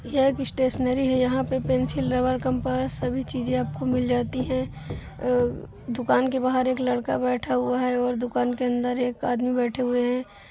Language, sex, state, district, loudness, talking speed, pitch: Hindi, female, Bihar, Begusarai, -25 LUFS, 190 wpm, 245 Hz